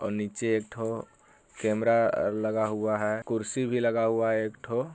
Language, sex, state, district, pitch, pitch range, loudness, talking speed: Hindi, male, Bihar, Jamui, 110 Hz, 110-115 Hz, -28 LUFS, 180 wpm